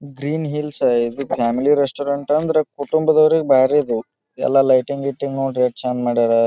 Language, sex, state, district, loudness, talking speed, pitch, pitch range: Kannada, male, Karnataka, Bijapur, -18 LUFS, 150 wpm, 140 Hz, 125-150 Hz